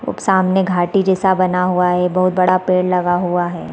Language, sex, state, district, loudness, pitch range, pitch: Hindi, female, Chhattisgarh, Raigarh, -16 LUFS, 180-185 Hz, 185 Hz